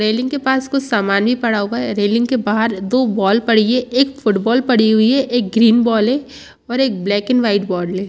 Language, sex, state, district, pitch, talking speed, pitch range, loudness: Hindi, female, Chhattisgarh, Bastar, 230 Hz, 230 wpm, 210-255 Hz, -16 LUFS